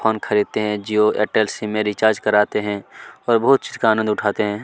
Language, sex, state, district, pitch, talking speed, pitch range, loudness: Hindi, male, Chhattisgarh, Kabirdham, 105 Hz, 220 wpm, 105-110 Hz, -19 LUFS